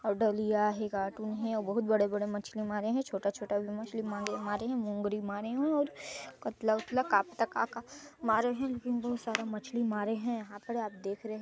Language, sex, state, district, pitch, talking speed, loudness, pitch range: Hindi, female, Chhattisgarh, Sarguja, 215 Hz, 225 wpm, -33 LUFS, 205-235 Hz